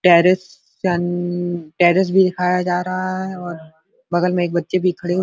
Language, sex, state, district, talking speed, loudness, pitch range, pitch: Hindi, male, Bihar, Supaul, 170 wpm, -19 LUFS, 175-185 Hz, 180 Hz